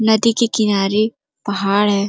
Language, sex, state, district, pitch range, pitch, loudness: Hindi, female, Uttar Pradesh, Gorakhpur, 200-225 Hz, 215 Hz, -17 LUFS